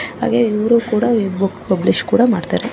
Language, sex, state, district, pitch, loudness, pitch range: Kannada, female, Karnataka, Gulbarga, 230 Hz, -16 LUFS, 210-240 Hz